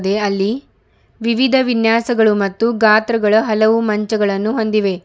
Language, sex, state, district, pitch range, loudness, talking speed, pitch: Kannada, female, Karnataka, Bidar, 210-230 Hz, -15 LUFS, 105 wpm, 220 Hz